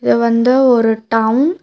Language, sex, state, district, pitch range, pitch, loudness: Tamil, female, Tamil Nadu, Nilgiris, 225-255 Hz, 230 Hz, -13 LUFS